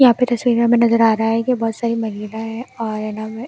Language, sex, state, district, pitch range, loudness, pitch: Hindi, female, Delhi, New Delhi, 220-235 Hz, -18 LUFS, 230 Hz